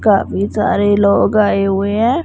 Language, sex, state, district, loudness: Hindi, female, Punjab, Pathankot, -14 LUFS